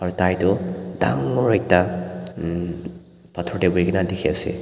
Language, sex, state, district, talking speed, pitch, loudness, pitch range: Nagamese, male, Nagaland, Dimapur, 115 wpm, 90 Hz, -22 LUFS, 90-95 Hz